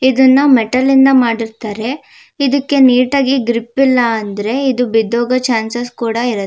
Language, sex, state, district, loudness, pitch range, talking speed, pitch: Kannada, female, Karnataka, Shimoga, -13 LUFS, 230-265 Hz, 140 wpm, 250 Hz